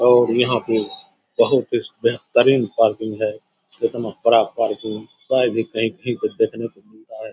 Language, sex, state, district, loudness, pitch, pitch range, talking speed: Hindi, male, Bihar, Samastipur, -20 LUFS, 115 Hz, 110-120 Hz, 170 wpm